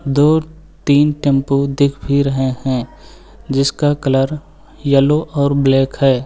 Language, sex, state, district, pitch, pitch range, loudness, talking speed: Hindi, male, Uttar Pradesh, Lucknow, 140 Hz, 135-145 Hz, -15 LUFS, 125 wpm